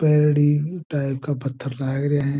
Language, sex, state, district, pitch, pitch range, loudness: Marwari, male, Rajasthan, Churu, 145 Hz, 135-150 Hz, -22 LUFS